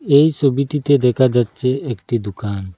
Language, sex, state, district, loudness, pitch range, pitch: Bengali, male, Assam, Hailakandi, -17 LUFS, 115-140 Hz, 130 Hz